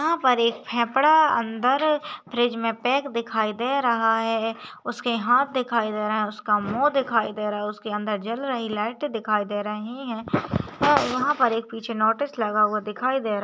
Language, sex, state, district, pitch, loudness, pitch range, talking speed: Hindi, female, Maharashtra, Nagpur, 230 Hz, -24 LUFS, 215-255 Hz, 200 wpm